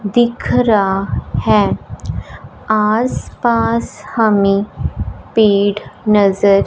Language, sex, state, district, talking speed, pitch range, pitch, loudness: Hindi, female, Punjab, Fazilka, 65 wpm, 200-230 Hz, 210 Hz, -15 LUFS